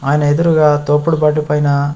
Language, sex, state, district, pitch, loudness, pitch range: Telugu, male, Telangana, Adilabad, 150 Hz, -13 LUFS, 145-150 Hz